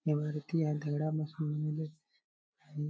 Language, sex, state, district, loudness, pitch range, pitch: Marathi, male, Maharashtra, Sindhudurg, -35 LUFS, 150-155 Hz, 150 Hz